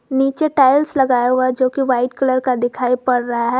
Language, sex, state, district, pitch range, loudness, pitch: Hindi, female, Jharkhand, Garhwa, 245-270 Hz, -16 LUFS, 255 Hz